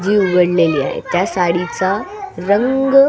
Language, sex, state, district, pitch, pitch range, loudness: Marathi, female, Maharashtra, Solapur, 185 Hz, 175-260 Hz, -16 LUFS